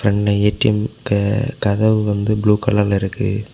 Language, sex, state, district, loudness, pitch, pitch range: Tamil, male, Tamil Nadu, Kanyakumari, -17 LUFS, 105 Hz, 100-110 Hz